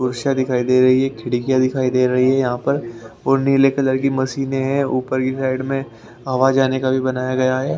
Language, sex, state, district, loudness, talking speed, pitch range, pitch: Hindi, male, Haryana, Rohtak, -18 LUFS, 260 wpm, 130-135 Hz, 130 Hz